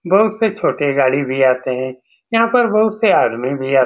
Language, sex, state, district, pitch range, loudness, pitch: Hindi, male, Bihar, Saran, 130-215 Hz, -16 LUFS, 140 Hz